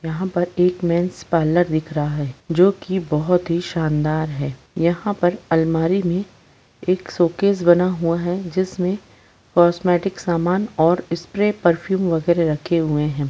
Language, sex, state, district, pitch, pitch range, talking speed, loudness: Hindi, female, Bihar, Gopalganj, 175 Hz, 160-180 Hz, 150 wpm, -20 LUFS